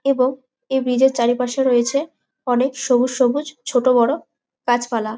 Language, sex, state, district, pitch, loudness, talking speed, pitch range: Bengali, female, West Bengal, Jalpaiguri, 255 Hz, -19 LUFS, 150 wpm, 245-265 Hz